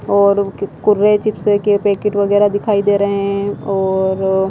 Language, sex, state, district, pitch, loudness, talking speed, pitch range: Hindi, female, Himachal Pradesh, Shimla, 200 Hz, -15 LUFS, 160 wpm, 200-205 Hz